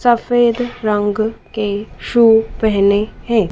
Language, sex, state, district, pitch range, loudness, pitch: Hindi, female, Madhya Pradesh, Dhar, 210-235 Hz, -16 LUFS, 220 Hz